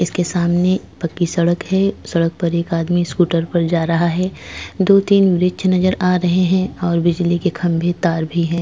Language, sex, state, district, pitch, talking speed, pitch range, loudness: Hindi, female, Goa, North and South Goa, 175 Hz, 180 wpm, 170-185 Hz, -17 LUFS